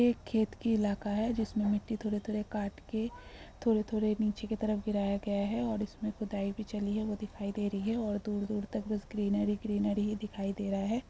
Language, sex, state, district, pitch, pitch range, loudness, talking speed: Hindi, female, Bihar, Jamui, 210 Hz, 205-220 Hz, -34 LUFS, 215 wpm